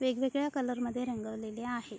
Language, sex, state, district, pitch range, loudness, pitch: Marathi, female, Maharashtra, Sindhudurg, 225-260 Hz, -35 LUFS, 245 Hz